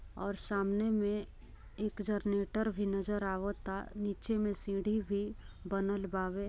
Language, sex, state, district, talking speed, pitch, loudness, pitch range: Bhojpuri, female, Bihar, Gopalganj, 120 wpm, 200 Hz, -36 LUFS, 195-210 Hz